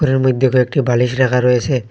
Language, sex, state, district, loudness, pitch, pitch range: Bengali, male, Assam, Hailakandi, -15 LUFS, 130 Hz, 125-130 Hz